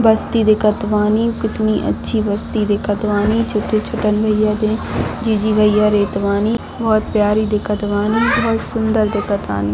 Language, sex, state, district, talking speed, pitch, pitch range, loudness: Hindi, female, Chhattisgarh, Bilaspur, 140 wpm, 215 Hz, 210-220 Hz, -17 LUFS